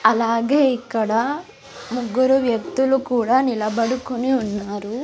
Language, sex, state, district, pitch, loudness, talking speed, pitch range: Telugu, female, Andhra Pradesh, Sri Satya Sai, 245 Hz, -20 LUFS, 85 wpm, 230-260 Hz